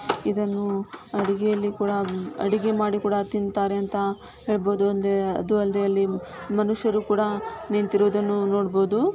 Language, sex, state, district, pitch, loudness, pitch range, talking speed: Kannada, female, Karnataka, Shimoga, 205 Hz, -24 LUFS, 200-210 Hz, 105 wpm